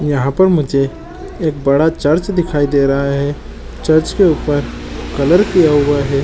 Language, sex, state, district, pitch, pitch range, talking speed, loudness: Chhattisgarhi, male, Chhattisgarh, Jashpur, 145 Hz, 140-160 Hz, 165 wpm, -14 LUFS